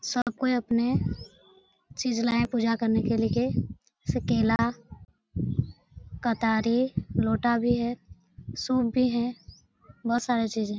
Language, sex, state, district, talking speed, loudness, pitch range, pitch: Hindi, female, Bihar, Lakhisarai, 120 wpm, -27 LUFS, 230-245 Hz, 235 Hz